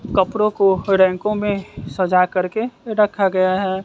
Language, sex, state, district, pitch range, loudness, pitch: Hindi, male, Bihar, West Champaran, 185-210 Hz, -18 LUFS, 195 Hz